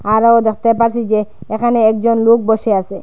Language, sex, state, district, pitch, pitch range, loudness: Bengali, female, Assam, Hailakandi, 220 Hz, 215-230 Hz, -13 LUFS